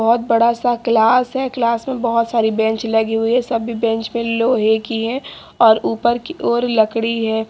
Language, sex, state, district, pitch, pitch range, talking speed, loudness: Hindi, female, Haryana, Jhajjar, 230 Hz, 225-240 Hz, 200 wpm, -17 LUFS